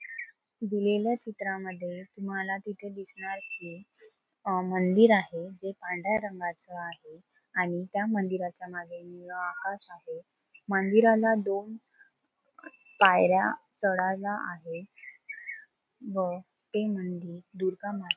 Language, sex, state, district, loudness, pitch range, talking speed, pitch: Marathi, female, Maharashtra, Solapur, -29 LUFS, 180-220 Hz, 95 wpm, 195 Hz